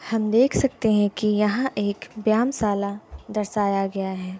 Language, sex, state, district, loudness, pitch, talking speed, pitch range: Hindi, female, Bihar, Gopalganj, -23 LUFS, 210 Hz, 150 wpm, 200-220 Hz